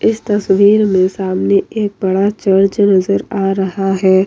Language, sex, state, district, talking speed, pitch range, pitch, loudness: Hindi, female, Bihar, Kishanganj, 155 wpm, 190-205 Hz, 195 Hz, -13 LUFS